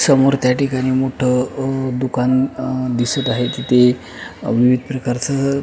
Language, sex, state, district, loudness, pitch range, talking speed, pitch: Marathi, male, Maharashtra, Pune, -17 LUFS, 125-135 Hz, 150 wpm, 130 Hz